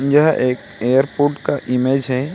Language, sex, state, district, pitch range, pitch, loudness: Hindi, male, Bihar, Samastipur, 125-145 Hz, 135 Hz, -17 LUFS